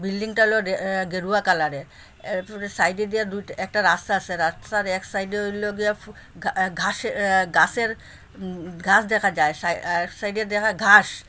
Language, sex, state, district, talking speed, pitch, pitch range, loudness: Bengali, female, Assam, Hailakandi, 195 wpm, 195 Hz, 185-210 Hz, -22 LUFS